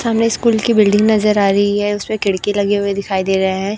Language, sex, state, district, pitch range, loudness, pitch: Hindi, male, Chhattisgarh, Raipur, 200-215 Hz, -15 LUFS, 205 Hz